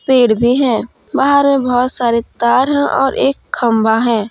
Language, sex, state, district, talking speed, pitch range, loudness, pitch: Hindi, female, Jharkhand, Deoghar, 180 wpm, 235-270 Hz, -14 LUFS, 250 Hz